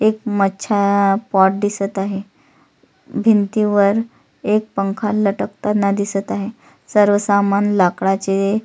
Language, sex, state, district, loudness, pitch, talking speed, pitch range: Marathi, female, Maharashtra, Solapur, -17 LUFS, 200 Hz, 120 wpm, 195-210 Hz